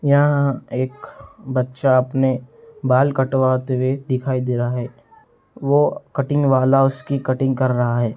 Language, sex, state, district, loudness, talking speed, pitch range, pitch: Hindi, male, Uttar Pradesh, Etah, -19 LUFS, 140 wpm, 130-140 Hz, 130 Hz